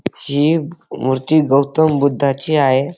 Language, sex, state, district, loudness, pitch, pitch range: Marathi, male, Maharashtra, Dhule, -16 LUFS, 140 Hz, 135-155 Hz